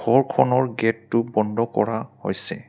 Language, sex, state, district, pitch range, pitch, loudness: Assamese, male, Assam, Kamrup Metropolitan, 110-125 Hz, 115 Hz, -22 LUFS